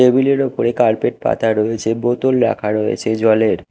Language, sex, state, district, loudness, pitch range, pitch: Bengali, male, Odisha, Khordha, -16 LUFS, 110-125 Hz, 115 Hz